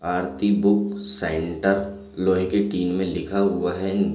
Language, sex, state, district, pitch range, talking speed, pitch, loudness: Hindi, male, Chhattisgarh, Raigarh, 90-100 Hz, 145 wpm, 95 Hz, -23 LUFS